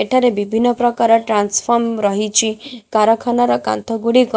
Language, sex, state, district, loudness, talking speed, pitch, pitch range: Odia, female, Odisha, Khordha, -16 LUFS, 125 wpm, 225 Hz, 210-240 Hz